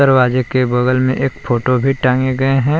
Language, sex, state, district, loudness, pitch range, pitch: Hindi, male, Jharkhand, Palamu, -15 LUFS, 125-135 Hz, 130 Hz